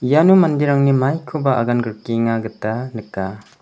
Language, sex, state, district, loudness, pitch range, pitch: Garo, male, Meghalaya, West Garo Hills, -18 LUFS, 110-140 Hz, 120 Hz